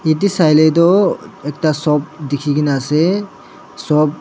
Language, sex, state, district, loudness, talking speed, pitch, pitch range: Nagamese, male, Nagaland, Dimapur, -15 LUFS, 115 wpm, 155 Hz, 150-165 Hz